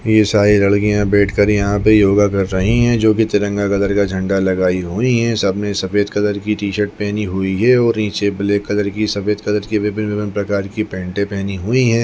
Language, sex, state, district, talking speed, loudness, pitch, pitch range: Hindi, male, Chhattisgarh, Bastar, 210 wpm, -16 LUFS, 105 Hz, 100-105 Hz